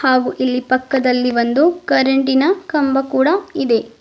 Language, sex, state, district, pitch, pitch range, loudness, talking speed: Kannada, female, Karnataka, Bidar, 265 Hz, 255-290 Hz, -16 LUFS, 135 wpm